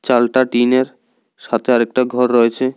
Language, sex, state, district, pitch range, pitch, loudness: Bengali, male, Tripura, South Tripura, 120-130 Hz, 125 Hz, -15 LUFS